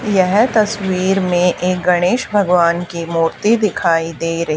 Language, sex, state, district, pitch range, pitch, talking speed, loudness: Hindi, female, Haryana, Charkhi Dadri, 170-205 Hz, 180 Hz, 145 wpm, -15 LUFS